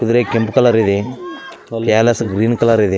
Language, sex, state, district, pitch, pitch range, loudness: Kannada, male, Karnataka, Raichur, 115 Hz, 110-120 Hz, -14 LUFS